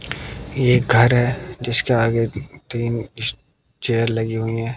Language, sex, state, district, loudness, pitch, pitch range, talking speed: Hindi, male, Haryana, Jhajjar, -20 LUFS, 120 Hz, 115-125 Hz, 150 wpm